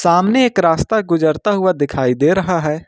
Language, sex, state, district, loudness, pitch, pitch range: Hindi, male, Jharkhand, Ranchi, -15 LUFS, 175 Hz, 155-190 Hz